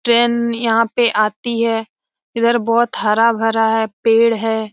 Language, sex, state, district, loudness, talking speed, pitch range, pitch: Hindi, female, Bihar, Jamui, -16 LUFS, 140 wpm, 225-235 Hz, 230 Hz